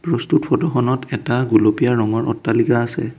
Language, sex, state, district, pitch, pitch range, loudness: Assamese, male, Assam, Kamrup Metropolitan, 120 Hz, 115-140 Hz, -17 LUFS